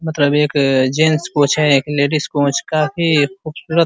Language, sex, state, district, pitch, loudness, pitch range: Hindi, male, Uttar Pradesh, Ghazipur, 150 Hz, -15 LUFS, 145-155 Hz